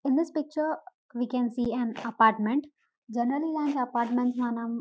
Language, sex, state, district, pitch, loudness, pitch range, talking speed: Telugu, female, Telangana, Karimnagar, 245 Hz, -28 LUFS, 235-295 Hz, 160 wpm